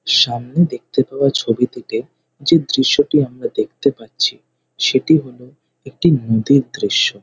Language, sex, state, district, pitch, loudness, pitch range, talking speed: Bengali, male, West Bengal, North 24 Parganas, 135 Hz, -17 LUFS, 125-150 Hz, 115 wpm